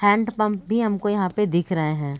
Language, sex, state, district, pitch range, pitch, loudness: Hindi, female, Bihar, Gopalganj, 175-215 Hz, 205 Hz, -22 LUFS